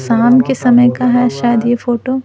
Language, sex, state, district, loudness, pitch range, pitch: Hindi, female, Bihar, Patna, -12 LUFS, 240-255 Hz, 245 Hz